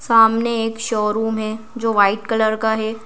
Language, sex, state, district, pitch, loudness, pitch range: Hindi, female, Madhya Pradesh, Bhopal, 220 Hz, -18 LUFS, 220-225 Hz